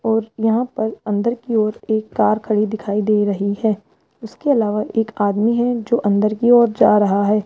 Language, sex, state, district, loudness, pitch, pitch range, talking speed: Hindi, female, Rajasthan, Jaipur, -18 LUFS, 215 Hz, 210-225 Hz, 200 wpm